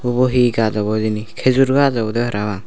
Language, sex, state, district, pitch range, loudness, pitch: Chakma, male, Tripura, Unakoti, 110-125 Hz, -17 LUFS, 115 Hz